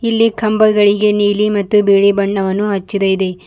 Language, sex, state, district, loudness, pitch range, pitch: Kannada, female, Karnataka, Bidar, -13 LUFS, 200-210 Hz, 205 Hz